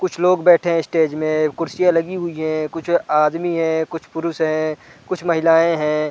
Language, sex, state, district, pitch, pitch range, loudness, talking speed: Hindi, male, Chhattisgarh, Rajnandgaon, 165 Hz, 155-170 Hz, -18 LUFS, 185 wpm